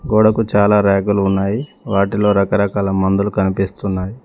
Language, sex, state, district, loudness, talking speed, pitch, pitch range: Telugu, male, Telangana, Mahabubabad, -16 LUFS, 115 wpm, 100 Hz, 95-105 Hz